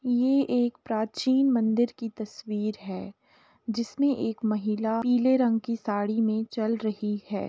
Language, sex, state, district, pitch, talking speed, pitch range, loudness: Hindi, female, Uttar Pradesh, Jalaun, 225 Hz, 145 wpm, 215-245 Hz, -27 LUFS